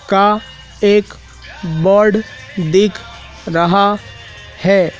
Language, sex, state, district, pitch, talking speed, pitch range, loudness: Hindi, male, Madhya Pradesh, Dhar, 195 Hz, 70 wpm, 170-205 Hz, -14 LUFS